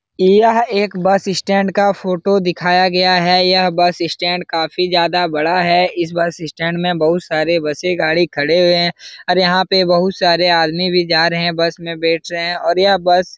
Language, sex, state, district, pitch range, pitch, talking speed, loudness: Hindi, male, Bihar, Jahanabad, 170-185 Hz, 175 Hz, 220 wpm, -14 LUFS